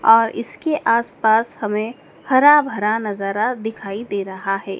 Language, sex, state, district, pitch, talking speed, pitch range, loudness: Hindi, male, Madhya Pradesh, Dhar, 220 Hz, 150 wpm, 200-235 Hz, -19 LUFS